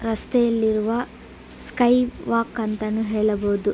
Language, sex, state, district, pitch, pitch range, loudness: Kannada, female, Karnataka, Belgaum, 220 Hz, 215-235 Hz, -22 LUFS